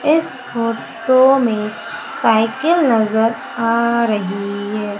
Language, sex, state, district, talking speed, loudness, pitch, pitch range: Hindi, female, Madhya Pradesh, Umaria, 95 wpm, -17 LUFS, 230 Hz, 215-255 Hz